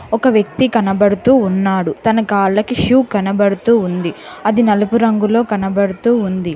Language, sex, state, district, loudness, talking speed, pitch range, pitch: Telugu, female, Telangana, Hyderabad, -14 LUFS, 130 wpm, 195-230 Hz, 210 Hz